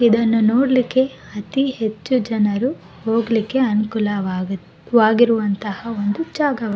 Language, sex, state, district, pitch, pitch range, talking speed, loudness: Kannada, female, Karnataka, Bellary, 225 Hz, 210-245 Hz, 90 wpm, -19 LUFS